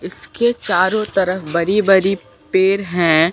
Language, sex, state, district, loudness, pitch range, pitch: Hindi, female, Bihar, Katihar, -16 LUFS, 175-200 Hz, 190 Hz